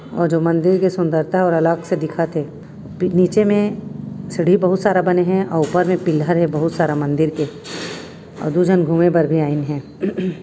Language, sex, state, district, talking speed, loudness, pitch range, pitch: Chhattisgarhi, female, Chhattisgarh, Raigarh, 190 wpm, -18 LUFS, 160-185 Hz, 175 Hz